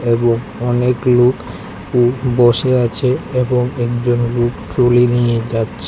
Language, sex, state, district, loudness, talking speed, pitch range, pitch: Bengali, male, Tripura, West Tripura, -15 LUFS, 110 wpm, 120-125 Hz, 120 Hz